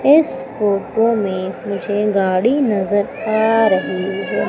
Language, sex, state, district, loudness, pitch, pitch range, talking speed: Hindi, female, Madhya Pradesh, Umaria, -17 LUFS, 205 Hz, 195-225 Hz, 120 wpm